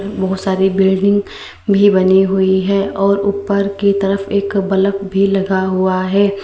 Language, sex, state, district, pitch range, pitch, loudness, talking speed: Hindi, female, Uttar Pradesh, Lalitpur, 190-200 Hz, 195 Hz, -14 LUFS, 160 wpm